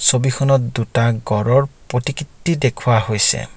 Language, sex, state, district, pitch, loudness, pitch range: Assamese, male, Assam, Kamrup Metropolitan, 125 Hz, -18 LUFS, 115-135 Hz